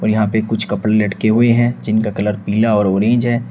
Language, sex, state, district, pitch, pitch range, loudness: Hindi, male, Uttar Pradesh, Shamli, 110 Hz, 105-115 Hz, -15 LUFS